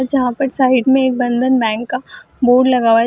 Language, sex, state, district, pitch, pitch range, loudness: Hindi, female, Bihar, Samastipur, 255 Hz, 245-260 Hz, -14 LUFS